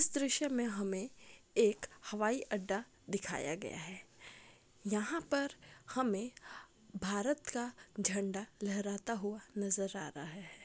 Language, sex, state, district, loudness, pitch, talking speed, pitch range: Hindi, female, Chhattisgarh, Raigarh, -38 LUFS, 210 Hz, 125 wpm, 200-250 Hz